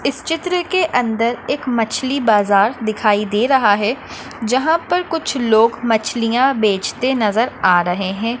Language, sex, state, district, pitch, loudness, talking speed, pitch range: Hindi, female, Maharashtra, Pune, 230 Hz, -17 LUFS, 145 wpm, 215-265 Hz